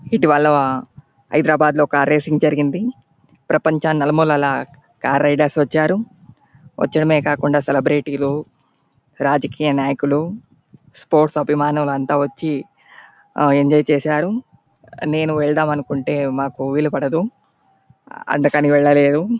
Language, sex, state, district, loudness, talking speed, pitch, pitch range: Telugu, male, Andhra Pradesh, Anantapur, -17 LUFS, 85 wpm, 145 Hz, 140-155 Hz